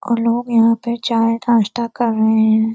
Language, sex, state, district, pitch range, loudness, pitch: Hindi, female, Uttar Pradesh, Varanasi, 225-235 Hz, -16 LUFS, 230 Hz